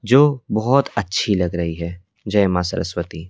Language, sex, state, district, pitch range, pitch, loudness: Hindi, male, Delhi, New Delhi, 85-110 Hz, 95 Hz, -20 LUFS